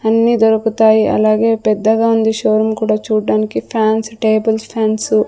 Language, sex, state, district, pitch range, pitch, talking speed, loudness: Telugu, female, Andhra Pradesh, Sri Satya Sai, 215-225 Hz, 220 Hz, 150 wpm, -14 LUFS